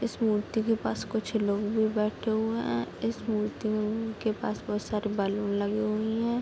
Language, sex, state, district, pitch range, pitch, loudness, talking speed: Hindi, female, Bihar, Kishanganj, 210-225 Hz, 215 Hz, -30 LUFS, 205 wpm